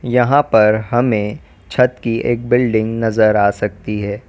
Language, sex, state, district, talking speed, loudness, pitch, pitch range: Hindi, female, Uttar Pradesh, Lalitpur, 155 wpm, -15 LUFS, 115 Hz, 105-120 Hz